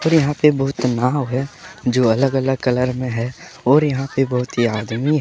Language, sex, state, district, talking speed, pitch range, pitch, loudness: Hindi, male, Jharkhand, Deoghar, 195 wpm, 125-145 Hz, 130 Hz, -19 LUFS